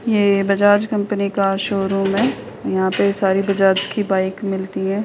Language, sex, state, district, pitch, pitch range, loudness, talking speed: Hindi, female, Uttar Pradesh, Hamirpur, 200 Hz, 195-205 Hz, -18 LUFS, 165 wpm